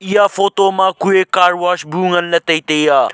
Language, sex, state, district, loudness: Wancho, male, Arunachal Pradesh, Longding, -14 LUFS